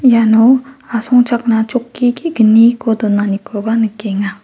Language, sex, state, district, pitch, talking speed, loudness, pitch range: Garo, female, Meghalaya, West Garo Hills, 230 Hz, 80 wpm, -13 LUFS, 220-245 Hz